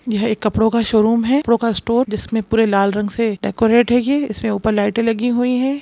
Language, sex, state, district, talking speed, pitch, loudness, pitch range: Hindi, female, Bihar, Jamui, 235 wpm, 225 Hz, -17 LUFS, 215-240 Hz